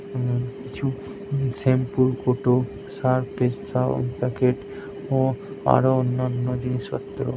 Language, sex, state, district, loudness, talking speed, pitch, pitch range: Bengali, male, West Bengal, Jhargram, -24 LUFS, 90 wpm, 130 Hz, 125-130 Hz